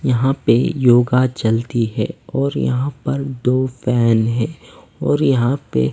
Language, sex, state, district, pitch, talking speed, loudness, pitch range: Hindi, male, Delhi, New Delhi, 125 Hz, 140 wpm, -17 LUFS, 115-135 Hz